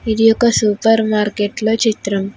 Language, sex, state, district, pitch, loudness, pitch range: Telugu, female, Telangana, Hyderabad, 220 Hz, -15 LUFS, 205-225 Hz